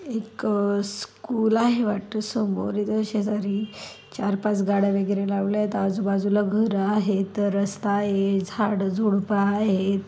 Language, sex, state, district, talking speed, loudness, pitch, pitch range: Marathi, female, Maharashtra, Dhule, 115 wpm, -24 LUFS, 205 Hz, 200-210 Hz